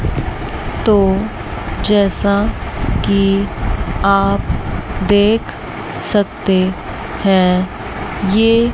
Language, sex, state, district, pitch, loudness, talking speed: Hindi, female, Chandigarh, Chandigarh, 190 Hz, -16 LUFS, 55 wpm